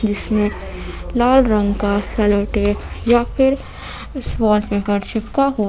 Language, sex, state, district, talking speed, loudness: Hindi, female, Jharkhand, Ranchi, 115 wpm, -18 LUFS